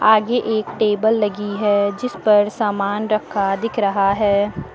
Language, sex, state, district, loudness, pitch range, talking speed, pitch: Hindi, female, Uttar Pradesh, Lucknow, -18 LUFS, 200-220 Hz, 150 wpm, 210 Hz